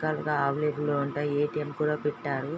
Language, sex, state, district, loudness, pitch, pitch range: Telugu, female, Andhra Pradesh, Srikakulam, -29 LUFS, 150 Hz, 145-150 Hz